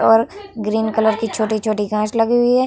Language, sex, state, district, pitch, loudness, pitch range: Hindi, female, Bihar, Vaishali, 220 Hz, -18 LUFS, 215-230 Hz